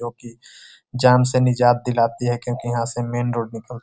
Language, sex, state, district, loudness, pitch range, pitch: Hindi, male, Bihar, Muzaffarpur, -20 LUFS, 120-125 Hz, 120 Hz